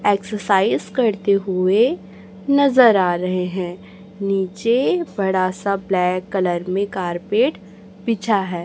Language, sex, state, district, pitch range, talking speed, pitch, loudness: Hindi, female, Chhattisgarh, Raipur, 185-205 Hz, 110 wpm, 195 Hz, -19 LUFS